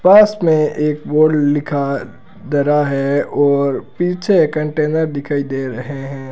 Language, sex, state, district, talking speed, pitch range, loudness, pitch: Hindi, male, Rajasthan, Bikaner, 135 wpm, 140-155 Hz, -16 LUFS, 145 Hz